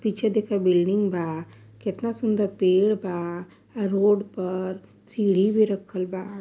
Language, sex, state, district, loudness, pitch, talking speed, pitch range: Awadhi, female, Uttar Pradesh, Varanasi, -24 LUFS, 195 Hz, 130 wpm, 185-210 Hz